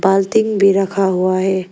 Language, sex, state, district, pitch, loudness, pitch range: Hindi, female, Arunachal Pradesh, Lower Dibang Valley, 195 Hz, -15 LUFS, 190-195 Hz